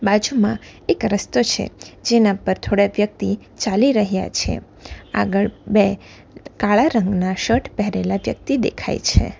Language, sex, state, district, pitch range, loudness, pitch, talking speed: Gujarati, female, Gujarat, Valsad, 195-215 Hz, -19 LUFS, 205 Hz, 130 wpm